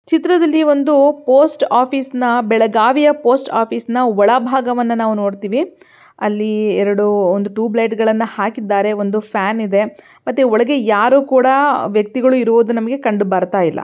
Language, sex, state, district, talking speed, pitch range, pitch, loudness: Kannada, female, Karnataka, Belgaum, 120 wpm, 210-265 Hz, 230 Hz, -15 LUFS